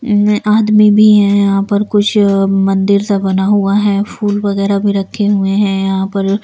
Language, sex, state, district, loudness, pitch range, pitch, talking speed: Hindi, female, Bihar, Patna, -12 LUFS, 195-205 Hz, 200 Hz, 175 wpm